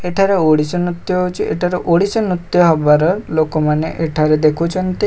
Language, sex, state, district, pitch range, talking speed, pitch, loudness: Odia, male, Odisha, Khordha, 155-180 Hz, 130 wpm, 175 Hz, -15 LUFS